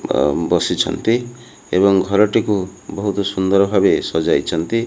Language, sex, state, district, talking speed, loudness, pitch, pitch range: Odia, male, Odisha, Malkangiri, 75 wpm, -17 LUFS, 100 Hz, 90-105 Hz